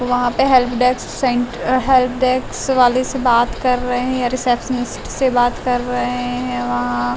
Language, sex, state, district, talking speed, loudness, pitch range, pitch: Hindi, female, Uttar Pradesh, Gorakhpur, 175 wpm, -17 LUFS, 245-255 Hz, 250 Hz